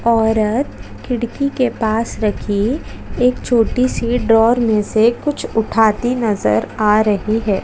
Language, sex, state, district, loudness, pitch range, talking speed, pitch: Hindi, female, Chhattisgarh, Jashpur, -16 LUFS, 215-245 Hz, 135 wpm, 225 Hz